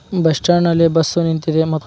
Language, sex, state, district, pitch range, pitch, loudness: Kannada, male, Karnataka, Dharwad, 160-170 Hz, 165 Hz, -15 LUFS